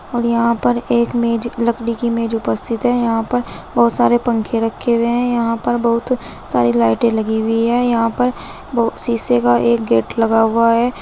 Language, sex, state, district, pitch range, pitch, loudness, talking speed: Hindi, female, Uttar Pradesh, Saharanpur, 225-240 Hz, 235 Hz, -16 LUFS, 190 wpm